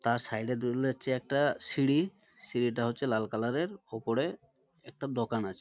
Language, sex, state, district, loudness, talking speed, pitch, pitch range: Bengali, male, West Bengal, Malda, -32 LUFS, 160 wpm, 125 Hz, 115-140 Hz